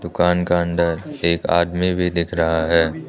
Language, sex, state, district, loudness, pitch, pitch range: Hindi, male, Arunachal Pradesh, Lower Dibang Valley, -19 LUFS, 85 Hz, 85-90 Hz